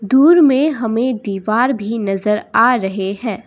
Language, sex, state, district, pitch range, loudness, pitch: Hindi, female, Assam, Kamrup Metropolitan, 205-255 Hz, -15 LUFS, 225 Hz